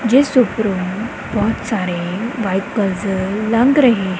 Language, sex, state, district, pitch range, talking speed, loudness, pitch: Punjabi, female, Punjab, Kapurthala, 190-230 Hz, 115 wpm, -17 LUFS, 210 Hz